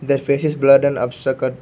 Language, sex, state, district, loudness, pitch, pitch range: English, male, Arunachal Pradesh, Lower Dibang Valley, -17 LUFS, 140 Hz, 130-140 Hz